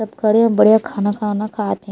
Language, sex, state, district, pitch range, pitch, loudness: Chhattisgarhi, female, Chhattisgarh, Raigarh, 205-220 Hz, 215 Hz, -16 LUFS